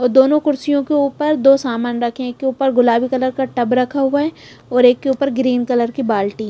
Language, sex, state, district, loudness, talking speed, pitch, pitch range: Hindi, female, Punjab, Pathankot, -16 LUFS, 260 wpm, 260 Hz, 245-275 Hz